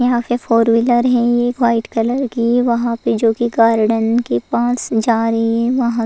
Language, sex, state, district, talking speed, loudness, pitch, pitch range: Hindi, female, Goa, North and South Goa, 205 wpm, -15 LUFS, 235 Hz, 230-240 Hz